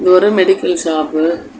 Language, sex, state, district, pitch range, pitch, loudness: Tamil, female, Tamil Nadu, Kanyakumari, 165-190 Hz, 180 Hz, -13 LUFS